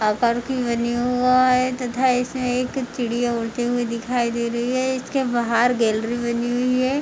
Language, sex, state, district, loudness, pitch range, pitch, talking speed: Hindi, female, Jharkhand, Jamtara, -21 LUFS, 235-255 Hz, 245 Hz, 180 wpm